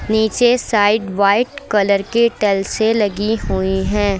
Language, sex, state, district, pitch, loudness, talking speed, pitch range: Hindi, female, Uttar Pradesh, Lucknow, 210 Hz, -16 LUFS, 130 wpm, 200-225 Hz